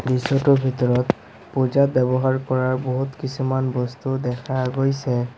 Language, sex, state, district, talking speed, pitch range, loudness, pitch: Assamese, male, Assam, Sonitpur, 110 wpm, 125-135 Hz, -21 LUFS, 130 Hz